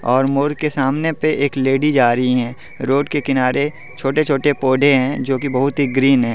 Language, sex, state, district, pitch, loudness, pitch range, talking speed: Hindi, male, Jharkhand, Deoghar, 135 Hz, -17 LUFS, 130-145 Hz, 215 wpm